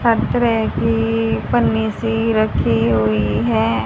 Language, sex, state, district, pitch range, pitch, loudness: Hindi, female, Haryana, Charkhi Dadri, 110-115 Hz, 110 Hz, -17 LUFS